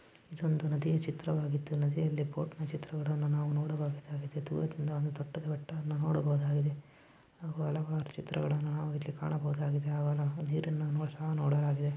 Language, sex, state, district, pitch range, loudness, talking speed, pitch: Kannada, male, Karnataka, Belgaum, 145-155 Hz, -34 LUFS, 135 wpm, 150 Hz